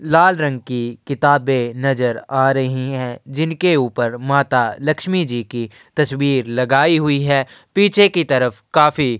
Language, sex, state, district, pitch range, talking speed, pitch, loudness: Hindi, male, Uttar Pradesh, Jyotiba Phule Nagar, 125-150 Hz, 150 wpm, 135 Hz, -17 LUFS